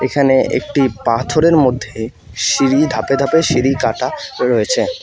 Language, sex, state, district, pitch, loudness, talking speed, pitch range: Bengali, male, West Bengal, Alipurduar, 135 Hz, -15 LUFS, 120 wpm, 125-155 Hz